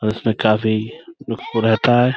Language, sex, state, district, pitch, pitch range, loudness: Hindi, male, Uttar Pradesh, Budaun, 115 Hz, 110-125 Hz, -18 LUFS